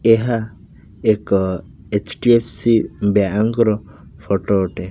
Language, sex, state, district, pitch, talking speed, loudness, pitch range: Odia, male, Odisha, Khordha, 105 Hz, 85 wpm, -18 LUFS, 95-115 Hz